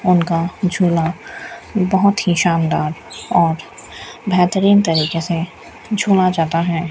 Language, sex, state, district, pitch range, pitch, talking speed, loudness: Hindi, female, Rajasthan, Bikaner, 165-195 Hz, 175 Hz, 105 wpm, -17 LUFS